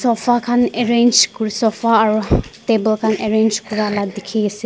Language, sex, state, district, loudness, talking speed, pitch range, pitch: Nagamese, female, Nagaland, Dimapur, -16 LUFS, 140 wpm, 215-235 Hz, 220 Hz